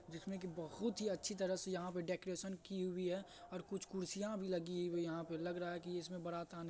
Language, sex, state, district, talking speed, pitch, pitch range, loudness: Hindi, male, Bihar, Saharsa, 260 wpm, 180 Hz, 175-190 Hz, -44 LUFS